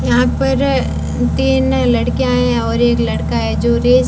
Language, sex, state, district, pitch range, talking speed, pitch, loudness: Hindi, female, Rajasthan, Bikaner, 80-85 Hz, 175 wpm, 80 Hz, -15 LUFS